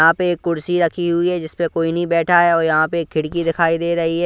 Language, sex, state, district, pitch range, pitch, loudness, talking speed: Hindi, male, Punjab, Kapurthala, 165-175 Hz, 170 Hz, -18 LUFS, 295 wpm